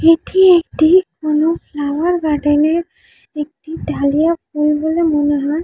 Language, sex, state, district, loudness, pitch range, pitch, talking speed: Bengali, female, West Bengal, Jhargram, -15 LUFS, 300-335 Hz, 315 Hz, 140 wpm